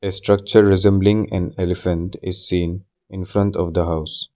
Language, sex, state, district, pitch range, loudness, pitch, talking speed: English, male, Arunachal Pradesh, Lower Dibang Valley, 90-100 Hz, -18 LUFS, 95 Hz, 150 wpm